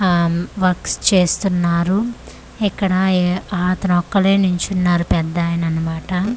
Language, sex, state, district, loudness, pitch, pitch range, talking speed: Telugu, female, Andhra Pradesh, Manyam, -18 LUFS, 180 Hz, 175-190 Hz, 85 wpm